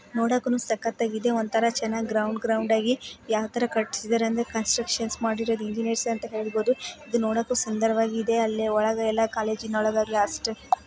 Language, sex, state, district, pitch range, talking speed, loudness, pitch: Kannada, female, Karnataka, Bijapur, 220-230 Hz, 125 wpm, -26 LUFS, 225 Hz